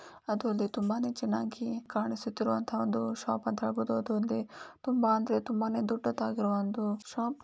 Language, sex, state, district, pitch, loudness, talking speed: Kannada, female, Karnataka, Dharwad, 220 Hz, -32 LUFS, 120 wpm